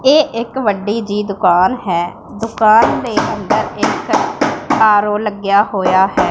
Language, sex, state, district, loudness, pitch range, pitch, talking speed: Punjabi, female, Punjab, Pathankot, -14 LUFS, 195-230 Hz, 210 Hz, 145 wpm